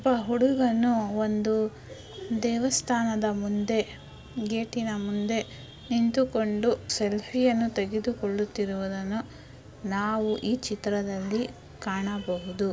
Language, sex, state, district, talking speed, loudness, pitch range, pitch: Kannada, female, Karnataka, Belgaum, 70 wpm, -28 LUFS, 205-235 Hz, 215 Hz